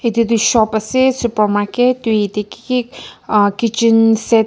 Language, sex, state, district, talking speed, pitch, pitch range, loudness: Nagamese, female, Nagaland, Kohima, 150 wpm, 230 Hz, 215-235 Hz, -15 LUFS